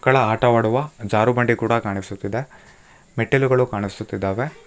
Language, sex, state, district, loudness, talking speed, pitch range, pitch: Kannada, male, Karnataka, Bangalore, -20 LUFS, 105 wpm, 100-125 Hz, 115 Hz